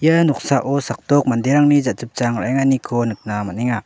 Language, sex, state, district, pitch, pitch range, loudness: Garo, male, Meghalaya, West Garo Hills, 125 Hz, 120-140 Hz, -18 LUFS